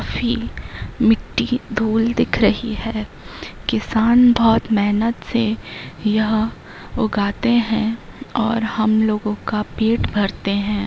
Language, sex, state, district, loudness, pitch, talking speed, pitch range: Hindi, female, Bihar, East Champaran, -19 LUFS, 220 Hz, 105 wpm, 210-225 Hz